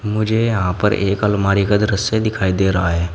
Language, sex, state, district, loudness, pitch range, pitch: Hindi, male, Uttar Pradesh, Shamli, -17 LUFS, 95-110 Hz, 100 Hz